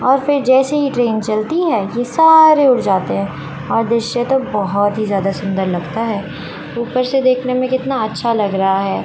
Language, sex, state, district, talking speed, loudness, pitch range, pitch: Hindi, female, Chandigarh, Chandigarh, 200 wpm, -15 LUFS, 195-260 Hz, 230 Hz